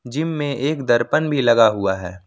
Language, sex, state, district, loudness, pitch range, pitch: Hindi, male, Jharkhand, Ranchi, -18 LUFS, 110-150 Hz, 120 Hz